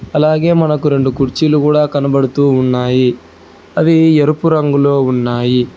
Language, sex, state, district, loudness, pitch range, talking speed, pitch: Telugu, male, Telangana, Hyderabad, -12 LUFS, 125-150 Hz, 115 wpm, 140 Hz